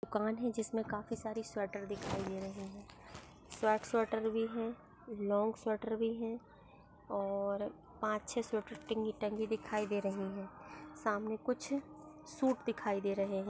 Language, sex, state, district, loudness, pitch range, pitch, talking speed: Hindi, female, Maharashtra, Solapur, -38 LUFS, 205-230 Hz, 220 Hz, 155 wpm